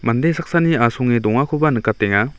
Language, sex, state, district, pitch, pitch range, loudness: Garo, male, Meghalaya, West Garo Hills, 120 Hz, 115-155 Hz, -17 LUFS